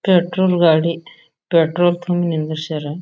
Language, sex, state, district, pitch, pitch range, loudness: Kannada, female, Karnataka, Bijapur, 170 Hz, 160-175 Hz, -17 LUFS